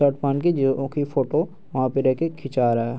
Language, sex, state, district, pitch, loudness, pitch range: Hindi, male, Bihar, Araria, 135 Hz, -23 LUFS, 130-150 Hz